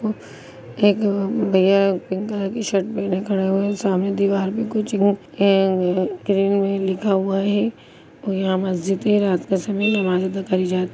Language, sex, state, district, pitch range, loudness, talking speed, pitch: Hindi, female, Uttar Pradesh, Jyotiba Phule Nagar, 190-205 Hz, -20 LUFS, 175 wpm, 195 Hz